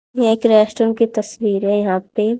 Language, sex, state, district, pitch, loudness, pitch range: Hindi, female, Haryana, Rohtak, 215 Hz, -17 LUFS, 205-230 Hz